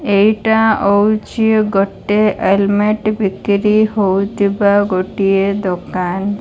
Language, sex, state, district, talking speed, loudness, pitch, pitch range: Odia, female, Odisha, Malkangiri, 75 wpm, -14 LUFS, 205 Hz, 195-215 Hz